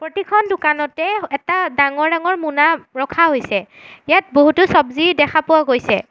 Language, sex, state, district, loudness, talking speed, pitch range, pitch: Assamese, female, Assam, Sonitpur, -16 LUFS, 140 wpm, 285-350 Hz, 315 Hz